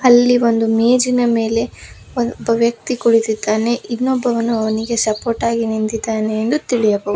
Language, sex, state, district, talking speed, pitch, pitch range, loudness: Kannada, female, Karnataka, Koppal, 125 wpm, 230 Hz, 220-240 Hz, -17 LUFS